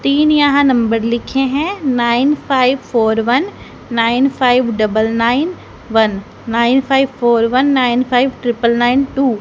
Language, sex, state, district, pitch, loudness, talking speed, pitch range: Hindi, female, Haryana, Charkhi Dadri, 250 Hz, -14 LUFS, 155 wpm, 235-270 Hz